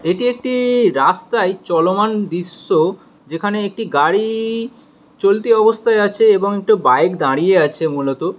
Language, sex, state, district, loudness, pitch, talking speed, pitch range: Bengali, male, West Bengal, Alipurduar, -16 LUFS, 205 Hz, 120 wpm, 175-225 Hz